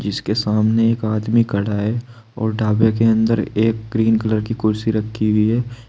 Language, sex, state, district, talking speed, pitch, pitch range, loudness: Hindi, male, Uttar Pradesh, Saharanpur, 185 wpm, 110 Hz, 110-115 Hz, -18 LUFS